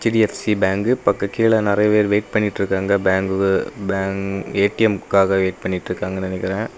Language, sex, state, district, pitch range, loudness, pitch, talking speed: Tamil, male, Tamil Nadu, Kanyakumari, 95-105 Hz, -19 LUFS, 100 Hz, 150 wpm